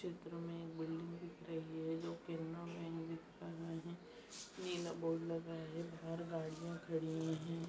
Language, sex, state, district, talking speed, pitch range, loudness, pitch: Hindi, female, Uttar Pradesh, Deoria, 155 wpm, 165-170 Hz, -46 LUFS, 165 Hz